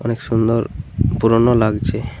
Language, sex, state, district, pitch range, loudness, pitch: Bengali, male, Jharkhand, Jamtara, 110-115 Hz, -17 LUFS, 115 Hz